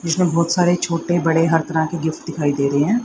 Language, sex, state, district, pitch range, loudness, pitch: Hindi, female, Haryana, Rohtak, 160-175 Hz, -18 LUFS, 165 Hz